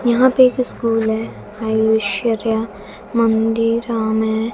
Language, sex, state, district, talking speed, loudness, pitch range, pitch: Hindi, female, Haryana, Jhajjar, 80 wpm, -17 LUFS, 220-230 Hz, 225 Hz